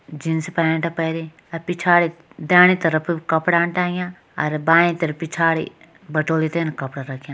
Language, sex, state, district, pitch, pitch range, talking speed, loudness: Kumaoni, female, Uttarakhand, Tehri Garhwal, 165 Hz, 155-170 Hz, 140 wpm, -19 LUFS